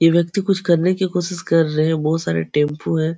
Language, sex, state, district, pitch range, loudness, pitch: Hindi, male, Uttar Pradesh, Etah, 155-180 Hz, -19 LUFS, 165 Hz